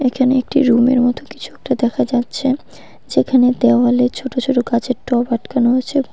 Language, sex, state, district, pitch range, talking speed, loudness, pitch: Bengali, female, West Bengal, Cooch Behar, 245-260 Hz, 155 wpm, -16 LUFS, 250 Hz